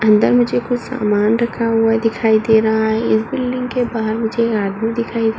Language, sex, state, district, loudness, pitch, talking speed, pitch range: Hindi, female, Uttar Pradesh, Muzaffarnagar, -16 LUFS, 225 Hz, 200 wpm, 220-235 Hz